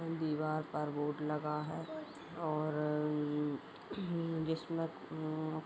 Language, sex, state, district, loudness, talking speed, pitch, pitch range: Hindi, female, Uttar Pradesh, Etah, -38 LUFS, 115 wpm, 155 Hz, 150-165 Hz